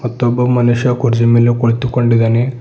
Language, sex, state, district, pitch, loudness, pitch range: Kannada, male, Karnataka, Bidar, 120 Hz, -13 LUFS, 115-125 Hz